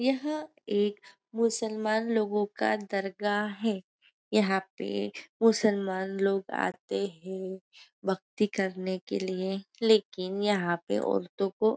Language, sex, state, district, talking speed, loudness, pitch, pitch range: Hindi, female, Maharashtra, Nagpur, 110 wpm, -30 LUFS, 200 Hz, 190-220 Hz